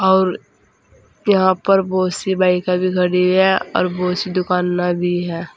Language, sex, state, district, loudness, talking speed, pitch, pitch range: Hindi, female, Uttar Pradesh, Saharanpur, -17 LUFS, 170 wpm, 180 Hz, 175-185 Hz